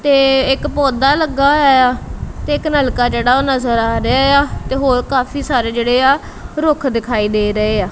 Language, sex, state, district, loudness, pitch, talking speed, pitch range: Punjabi, female, Punjab, Kapurthala, -14 LUFS, 265 Hz, 190 wpm, 245-280 Hz